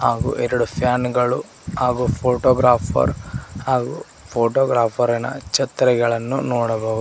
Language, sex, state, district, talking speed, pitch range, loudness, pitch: Kannada, male, Karnataka, Koppal, 95 wpm, 115-125 Hz, -19 LUFS, 120 Hz